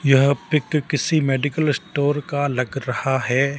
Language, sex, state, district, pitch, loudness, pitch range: Hindi, male, Rajasthan, Barmer, 140 Hz, -21 LUFS, 135-150 Hz